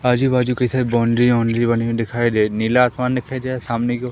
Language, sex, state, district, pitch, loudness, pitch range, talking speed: Hindi, male, Madhya Pradesh, Umaria, 120 Hz, -18 LUFS, 115-125 Hz, 250 wpm